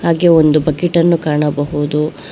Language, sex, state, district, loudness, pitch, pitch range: Kannada, female, Karnataka, Bangalore, -14 LUFS, 155 Hz, 150-170 Hz